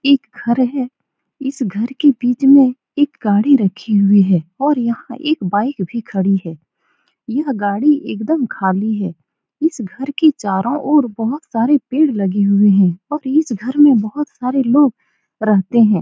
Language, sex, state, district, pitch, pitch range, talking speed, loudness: Hindi, female, Bihar, Saran, 245 Hz, 205-280 Hz, 170 wpm, -16 LUFS